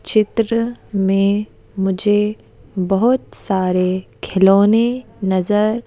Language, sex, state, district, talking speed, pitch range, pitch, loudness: Hindi, female, Madhya Pradesh, Bhopal, 70 wpm, 190-220 Hz, 205 Hz, -17 LUFS